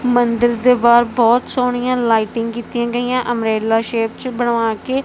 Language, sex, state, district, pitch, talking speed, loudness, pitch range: Punjabi, female, Punjab, Kapurthala, 240 Hz, 155 wpm, -16 LUFS, 230-250 Hz